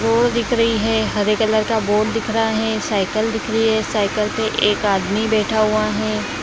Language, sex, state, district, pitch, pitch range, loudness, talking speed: Hindi, female, Bihar, Saharsa, 220 Hz, 215-225 Hz, -18 LUFS, 205 wpm